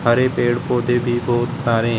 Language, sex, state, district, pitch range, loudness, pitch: Hindi, male, Uttar Pradesh, Shamli, 120-125 Hz, -19 LUFS, 120 Hz